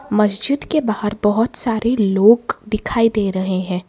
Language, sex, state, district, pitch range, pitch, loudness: Hindi, female, Karnataka, Bangalore, 205-235 Hz, 215 Hz, -17 LUFS